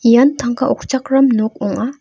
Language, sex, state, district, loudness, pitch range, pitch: Garo, female, Meghalaya, North Garo Hills, -15 LUFS, 235-270 Hz, 255 Hz